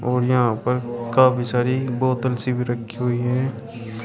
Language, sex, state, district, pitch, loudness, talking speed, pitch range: Hindi, male, Uttar Pradesh, Shamli, 125 Hz, -21 LUFS, 150 wpm, 120-125 Hz